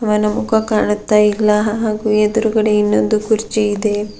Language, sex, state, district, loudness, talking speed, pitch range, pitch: Kannada, female, Karnataka, Bidar, -15 LUFS, 130 wpm, 210-220 Hz, 215 Hz